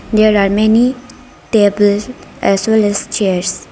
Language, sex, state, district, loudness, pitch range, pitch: English, female, Arunachal Pradesh, Lower Dibang Valley, -13 LUFS, 200-220 Hz, 210 Hz